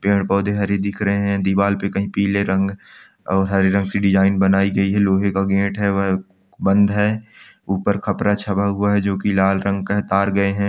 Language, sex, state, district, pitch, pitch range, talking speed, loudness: Angika, male, Bihar, Samastipur, 100 Hz, 95-100 Hz, 220 wpm, -18 LUFS